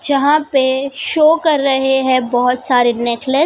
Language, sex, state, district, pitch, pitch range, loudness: Hindi, male, Maharashtra, Mumbai Suburban, 265 Hz, 250-295 Hz, -14 LUFS